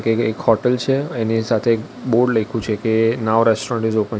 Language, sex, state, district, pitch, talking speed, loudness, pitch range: Gujarati, male, Gujarat, Valsad, 115 Hz, 230 wpm, -18 LUFS, 110-120 Hz